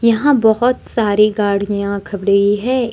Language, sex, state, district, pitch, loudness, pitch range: Hindi, female, Jharkhand, Deoghar, 210 Hz, -15 LUFS, 200-235 Hz